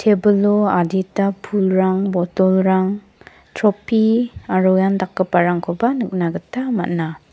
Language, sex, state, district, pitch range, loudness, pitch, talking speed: Garo, female, Meghalaya, West Garo Hills, 185-210 Hz, -18 LUFS, 190 Hz, 80 wpm